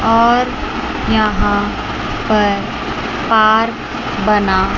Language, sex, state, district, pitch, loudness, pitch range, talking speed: Hindi, male, Chandigarh, Chandigarh, 215 Hz, -15 LUFS, 210-230 Hz, 65 wpm